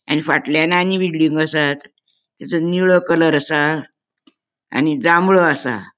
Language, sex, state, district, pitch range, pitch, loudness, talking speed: Konkani, female, Goa, North and South Goa, 150-175 Hz, 160 Hz, -16 LUFS, 120 wpm